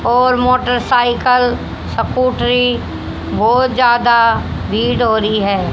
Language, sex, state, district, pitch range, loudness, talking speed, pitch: Hindi, female, Haryana, Charkhi Dadri, 235-250 Hz, -14 LUFS, 105 wpm, 245 Hz